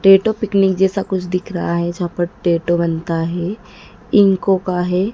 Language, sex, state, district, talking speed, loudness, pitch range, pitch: Hindi, female, Madhya Pradesh, Dhar, 175 wpm, -17 LUFS, 175-195 Hz, 185 Hz